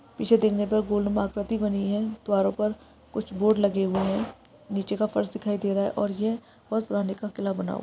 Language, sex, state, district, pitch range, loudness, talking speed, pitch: Hindi, female, Rajasthan, Nagaur, 200-215 Hz, -27 LUFS, 235 wpm, 205 Hz